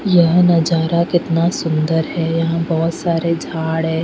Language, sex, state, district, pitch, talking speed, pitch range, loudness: Hindi, female, Bihar, Patna, 165 Hz, 150 wpm, 160-170 Hz, -16 LUFS